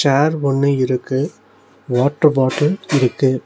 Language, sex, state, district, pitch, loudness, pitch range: Tamil, male, Tamil Nadu, Nilgiris, 140 Hz, -17 LUFS, 130-150 Hz